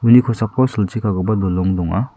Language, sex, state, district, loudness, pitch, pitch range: Garo, male, Meghalaya, South Garo Hills, -17 LUFS, 105 Hz, 95-120 Hz